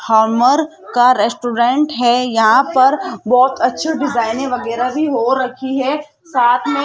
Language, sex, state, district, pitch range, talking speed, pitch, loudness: Hindi, female, Rajasthan, Jaipur, 240-280 Hz, 150 wpm, 255 Hz, -15 LUFS